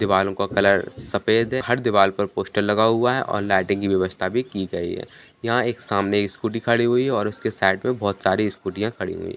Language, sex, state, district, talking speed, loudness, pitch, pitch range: Hindi, male, Bihar, Jahanabad, 230 wpm, -21 LUFS, 105 Hz, 100-115 Hz